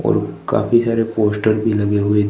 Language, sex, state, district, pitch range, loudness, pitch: Hindi, male, Gujarat, Gandhinagar, 105-110 Hz, -17 LUFS, 105 Hz